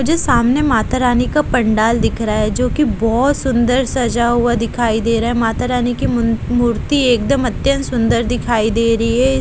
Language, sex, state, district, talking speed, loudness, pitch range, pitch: Hindi, female, Haryana, Jhajjar, 190 wpm, -15 LUFS, 230-255 Hz, 240 Hz